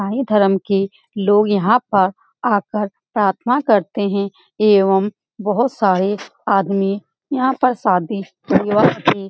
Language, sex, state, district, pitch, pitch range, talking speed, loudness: Hindi, female, Bihar, Saran, 205 Hz, 195-215 Hz, 130 wpm, -17 LUFS